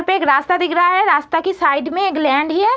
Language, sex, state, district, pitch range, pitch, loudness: Hindi, female, Bihar, East Champaran, 300-375 Hz, 350 Hz, -15 LUFS